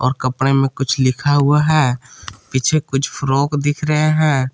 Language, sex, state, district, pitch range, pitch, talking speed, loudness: Hindi, male, Jharkhand, Palamu, 130-150 Hz, 135 Hz, 170 wpm, -16 LUFS